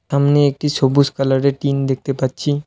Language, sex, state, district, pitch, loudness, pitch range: Bengali, male, West Bengal, Alipurduar, 140 Hz, -17 LUFS, 135-145 Hz